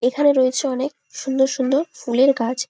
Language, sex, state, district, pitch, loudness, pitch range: Bengali, female, West Bengal, Jalpaiguri, 265 Hz, -19 LUFS, 255-275 Hz